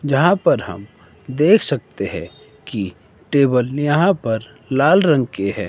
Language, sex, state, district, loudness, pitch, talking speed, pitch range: Hindi, male, Himachal Pradesh, Shimla, -17 LUFS, 135 Hz, 145 wpm, 105-150 Hz